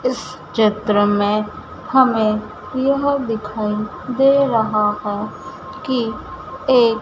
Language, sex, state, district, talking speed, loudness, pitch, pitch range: Hindi, female, Madhya Pradesh, Dhar, 95 wpm, -18 LUFS, 215 Hz, 210-255 Hz